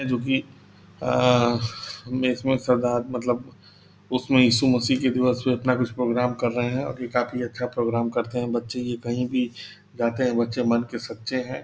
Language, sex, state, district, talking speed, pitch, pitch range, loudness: Hindi, male, Bihar, Purnia, 180 wpm, 125 Hz, 120-125 Hz, -24 LUFS